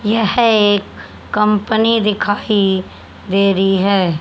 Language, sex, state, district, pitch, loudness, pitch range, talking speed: Hindi, female, Haryana, Charkhi Dadri, 205 Hz, -15 LUFS, 195-220 Hz, 100 wpm